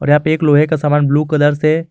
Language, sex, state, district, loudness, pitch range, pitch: Hindi, male, Jharkhand, Garhwa, -13 LUFS, 145-155 Hz, 150 Hz